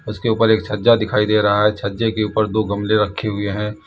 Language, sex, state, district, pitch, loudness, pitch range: Hindi, male, Uttar Pradesh, Lalitpur, 105 Hz, -18 LUFS, 105-110 Hz